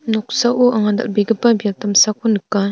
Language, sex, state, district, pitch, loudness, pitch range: Garo, female, Meghalaya, North Garo Hills, 220 Hz, -16 LUFS, 205-235 Hz